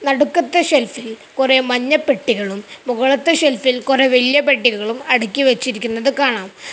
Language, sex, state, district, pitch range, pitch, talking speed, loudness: Malayalam, male, Kerala, Kasaragod, 235-280 Hz, 260 Hz, 105 wpm, -15 LUFS